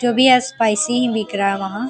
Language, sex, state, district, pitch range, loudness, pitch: Hindi, female, Bihar, Araria, 205-245 Hz, -17 LUFS, 230 Hz